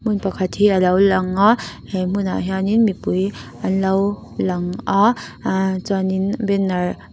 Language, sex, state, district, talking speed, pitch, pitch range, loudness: Mizo, female, Mizoram, Aizawl, 170 wpm, 195 Hz, 185-205 Hz, -19 LUFS